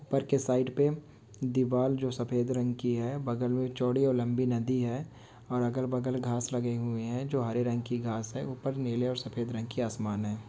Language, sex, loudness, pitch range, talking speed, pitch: Hindi, male, -31 LUFS, 120-130 Hz, 215 wpm, 125 Hz